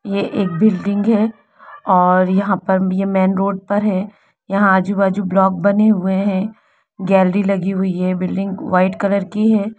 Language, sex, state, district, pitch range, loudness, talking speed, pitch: Hindi, female, Jharkhand, Jamtara, 190-200 Hz, -16 LUFS, 165 wpm, 195 Hz